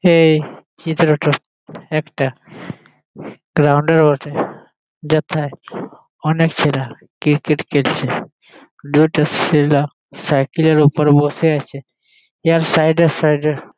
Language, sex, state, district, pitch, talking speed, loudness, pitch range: Bengali, male, West Bengal, Jalpaiguri, 150 Hz, 110 wpm, -16 LUFS, 145-160 Hz